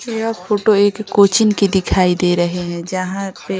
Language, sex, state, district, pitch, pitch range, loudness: Hindi, female, Bihar, Patna, 195 Hz, 180-215 Hz, -16 LUFS